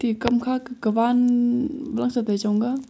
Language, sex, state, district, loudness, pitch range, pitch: Wancho, female, Arunachal Pradesh, Longding, -22 LUFS, 230-255 Hz, 240 Hz